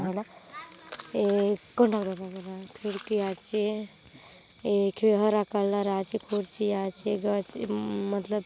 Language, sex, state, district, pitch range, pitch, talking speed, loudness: Halbi, female, Chhattisgarh, Bastar, 195-210 Hz, 205 Hz, 100 wpm, -29 LUFS